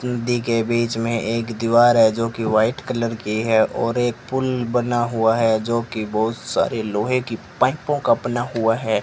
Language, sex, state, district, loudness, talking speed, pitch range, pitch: Hindi, male, Rajasthan, Bikaner, -20 LUFS, 185 wpm, 110-120 Hz, 115 Hz